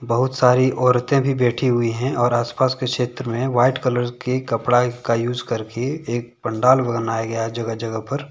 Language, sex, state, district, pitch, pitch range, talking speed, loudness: Hindi, male, Jharkhand, Deoghar, 120 Hz, 115-130 Hz, 210 wpm, -20 LUFS